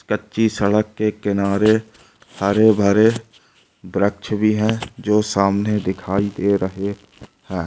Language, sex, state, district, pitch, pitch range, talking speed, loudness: Hindi, male, Andhra Pradesh, Anantapur, 105 Hz, 100-110 Hz, 115 wpm, -19 LUFS